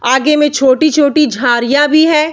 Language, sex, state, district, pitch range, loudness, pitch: Hindi, female, Bihar, Samastipur, 260-305 Hz, -10 LUFS, 295 Hz